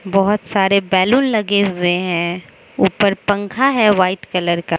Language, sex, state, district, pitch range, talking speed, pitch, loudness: Hindi, female, Mizoram, Aizawl, 180-205 Hz, 160 wpm, 195 Hz, -16 LUFS